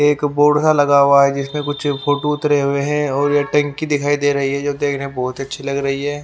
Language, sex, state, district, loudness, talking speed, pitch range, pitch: Hindi, male, Haryana, Jhajjar, -17 LUFS, 250 wpm, 140-145 Hz, 145 Hz